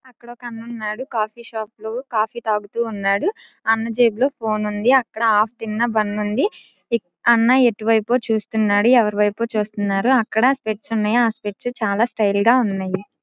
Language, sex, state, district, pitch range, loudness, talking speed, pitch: Telugu, female, Andhra Pradesh, Guntur, 210-240 Hz, -20 LUFS, 155 wpm, 225 Hz